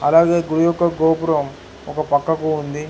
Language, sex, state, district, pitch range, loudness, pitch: Telugu, male, Telangana, Hyderabad, 150-165 Hz, -18 LUFS, 160 Hz